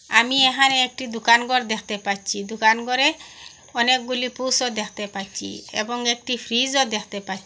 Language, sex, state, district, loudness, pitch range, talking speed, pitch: Bengali, female, Assam, Hailakandi, -21 LUFS, 210-255 Hz, 160 wpm, 235 Hz